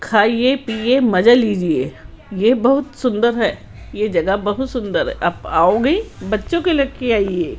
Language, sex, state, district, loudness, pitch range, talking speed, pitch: Hindi, female, Rajasthan, Jaipur, -17 LUFS, 205-265 Hz, 150 wpm, 235 Hz